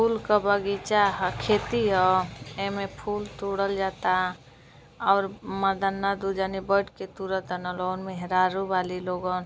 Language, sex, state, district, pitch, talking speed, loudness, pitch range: Bhojpuri, female, Uttar Pradesh, Deoria, 195 Hz, 135 wpm, -26 LUFS, 185-200 Hz